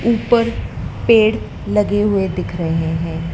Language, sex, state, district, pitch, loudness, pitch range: Hindi, female, Madhya Pradesh, Dhar, 205 Hz, -17 LUFS, 165-225 Hz